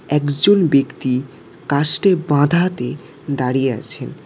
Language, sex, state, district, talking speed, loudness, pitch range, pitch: Bengali, male, West Bengal, Alipurduar, 85 wpm, -16 LUFS, 130-155 Hz, 145 Hz